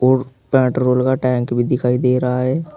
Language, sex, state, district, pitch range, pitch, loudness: Hindi, male, Uttar Pradesh, Saharanpur, 125-130 Hz, 125 Hz, -17 LUFS